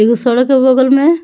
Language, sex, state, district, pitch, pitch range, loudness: Bhojpuri, female, Bihar, Muzaffarpur, 260 Hz, 245-270 Hz, -10 LUFS